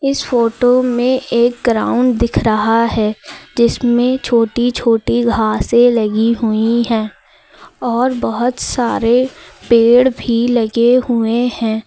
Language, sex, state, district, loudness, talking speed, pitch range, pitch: Hindi, female, Uttar Pradesh, Lucknow, -14 LUFS, 115 wpm, 230-245 Hz, 235 Hz